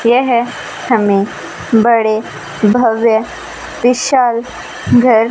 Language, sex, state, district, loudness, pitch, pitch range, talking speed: Hindi, female, Rajasthan, Bikaner, -13 LUFS, 230 Hz, 215-245 Hz, 70 wpm